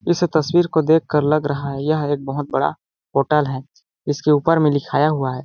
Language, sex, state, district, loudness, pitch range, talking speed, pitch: Hindi, male, Chhattisgarh, Balrampur, -19 LUFS, 140-155 Hz, 220 wpm, 150 Hz